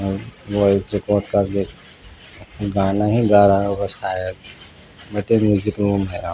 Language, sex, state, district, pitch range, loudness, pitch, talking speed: Hindi, male, Bihar, Patna, 95-105 Hz, -19 LUFS, 100 Hz, 130 wpm